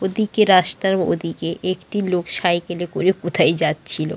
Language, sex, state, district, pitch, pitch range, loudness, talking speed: Bengali, female, West Bengal, Dakshin Dinajpur, 180 Hz, 170-190 Hz, -19 LUFS, 145 wpm